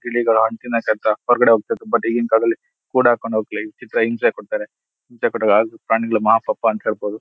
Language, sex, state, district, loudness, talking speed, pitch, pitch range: Kannada, male, Karnataka, Shimoga, -18 LUFS, 175 wpm, 115 Hz, 110-120 Hz